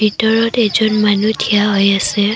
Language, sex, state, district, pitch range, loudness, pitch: Assamese, female, Assam, Kamrup Metropolitan, 205-220 Hz, -13 LUFS, 210 Hz